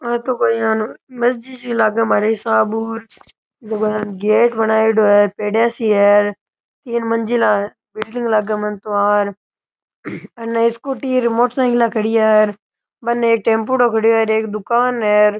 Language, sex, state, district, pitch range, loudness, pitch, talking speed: Rajasthani, male, Rajasthan, Nagaur, 210-235 Hz, -16 LUFS, 220 Hz, 160 wpm